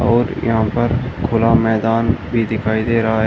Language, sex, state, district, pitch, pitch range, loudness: Hindi, male, Uttar Pradesh, Shamli, 115 Hz, 110-115 Hz, -17 LUFS